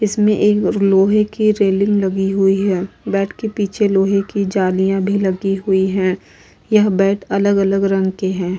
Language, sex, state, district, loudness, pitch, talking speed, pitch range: Hindi, female, Uttar Pradesh, Hamirpur, -16 LUFS, 195 Hz, 160 wpm, 195-205 Hz